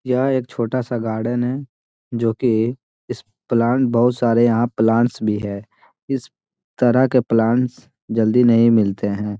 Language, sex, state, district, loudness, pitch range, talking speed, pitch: Hindi, male, Bihar, Gaya, -18 LUFS, 110-125 Hz, 145 wpm, 120 Hz